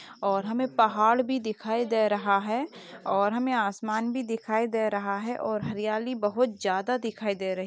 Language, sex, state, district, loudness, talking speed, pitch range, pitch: Hindi, female, Uttar Pradesh, Etah, -27 LUFS, 190 wpm, 205-235 Hz, 220 Hz